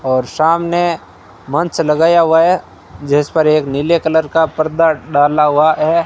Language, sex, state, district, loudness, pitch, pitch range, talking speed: Hindi, male, Rajasthan, Bikaner, -13 LUFS, 155 Hz, 145-165 Hz, 150 wpm